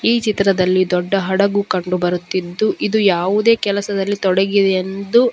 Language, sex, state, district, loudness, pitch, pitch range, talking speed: Kannada, female, Karnataka, Dakshina Kannada, -17 LUFS, 195 Hz, 185-205 Hz, 135 wpm